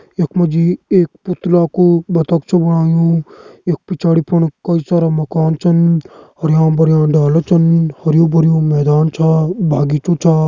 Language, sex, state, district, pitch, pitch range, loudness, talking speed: Garhwali, male, Uttarakhand, Uttarkashi, 165 Hz, 160-175 Hz, -13 LUFS, 150 wpm